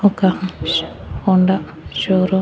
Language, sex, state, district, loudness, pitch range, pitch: Telugu, female, Andhra Pradesh, Annamaya, -18 LUFS, 185-190 Hz, 190 Hz